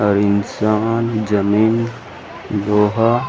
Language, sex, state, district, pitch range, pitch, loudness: Chhattisgarhi, male, Chhattisgarh, Rajnandgaon, 105-115 Hz, 110 Hz, -17 LUFS